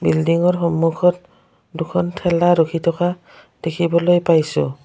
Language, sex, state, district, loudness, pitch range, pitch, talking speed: Assamese, female, Assam, Kamrup Metropolitan, -18 LUFS, 165-175 Hz, 170 Hz, 100 wpm